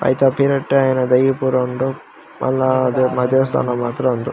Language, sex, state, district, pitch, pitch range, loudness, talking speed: Tulu, male, Karnataka, Dakshina Kannada, 130 Hz, 125-135 Hz, -17 LUFS, 165 wpm